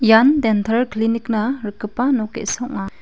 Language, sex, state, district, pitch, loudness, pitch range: Garo, female, Meghalaya, West Garo Hills, 225 Hz, -19 LUFS, 215-250 Hz